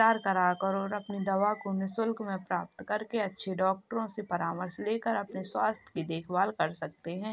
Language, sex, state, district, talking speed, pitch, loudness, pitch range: Hindi, male, Uttar Pradesh, Jalaun, 155 wpm, 195 Hz, -31 LUFS, 185-215 Hz